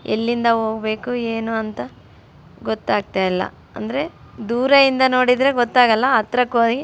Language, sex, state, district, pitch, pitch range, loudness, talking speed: Kannada, female, Karnataka, Raichur, 230 Hz, 215-250 Hz, -18 LUFS, 105 wpm